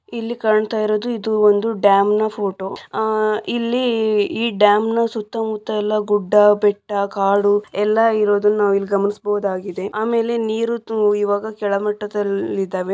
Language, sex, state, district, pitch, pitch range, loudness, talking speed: Kannada, female, Karnataka, Dharwad, 210 Hz, 205-220 Hz, -18 LUFS, 125 wpm